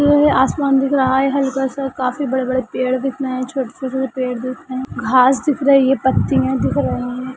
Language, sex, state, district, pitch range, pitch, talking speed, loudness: Hindi, female, Rajasthan, Churu, 255-270 Hz, 260 Hz, 220 wpm, -17 LUFS